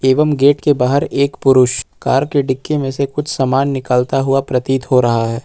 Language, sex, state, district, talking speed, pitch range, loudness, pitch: Hindi, male, Jharkhand, Ranchi, 210 wpm, 125-140 Hz, -15 LUFS, 135 Hz